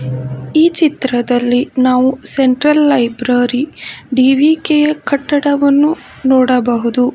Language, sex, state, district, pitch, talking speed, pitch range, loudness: Kannada, female, Karnataka, Bangalore, 265 Hz, 75 wpm, 245-290 Hz, -13 LUFS